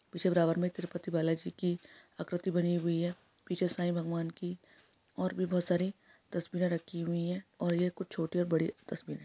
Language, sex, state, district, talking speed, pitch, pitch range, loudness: Hindi, female, Andhra Pradesh, Visakhapatnam, 190 wpm, 175 Hz, 170-180 Hz, -34 LUFS